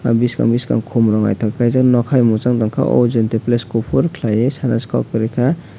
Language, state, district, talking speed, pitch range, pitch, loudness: Kokborok, Tripura, West Tripura, 195 wpm, 115-125 Hz, 120 Hz, -16 LUFS